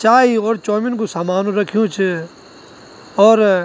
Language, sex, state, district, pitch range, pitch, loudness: Garhwali, male, Uttarakhand, Tehri Garhwal, 190-220 Hz, 210 Hz, -16 LUFS